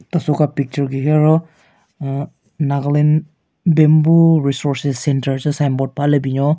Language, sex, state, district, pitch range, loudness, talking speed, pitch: Rengma, male, Nagaland, Kohima, 140-155 Hz, -16 LUFS, 145 wpm, 145 Hz